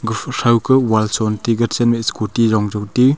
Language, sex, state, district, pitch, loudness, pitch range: Wancho, male, Arunachal Pradesh, Longding, 115 Hz, -16 LUFS, 110-120 Hz